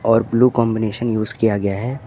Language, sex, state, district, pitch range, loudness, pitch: Hindi, male, Uttar Pradesh, Lucknow, 110-120 Hz, -18 LUFS, 115 Hz